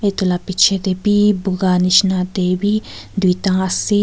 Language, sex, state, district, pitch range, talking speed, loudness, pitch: Nagamese, female, Nagaland, Kohima, 185-200 Hz, 135 wpm, -16 LUFS, 190 Hz